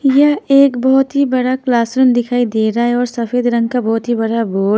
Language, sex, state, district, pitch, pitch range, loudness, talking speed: Hindi, female, Punjab, Fazilka, 245 Hz, 230-260 Hz, -14 LUFS, 240 wpm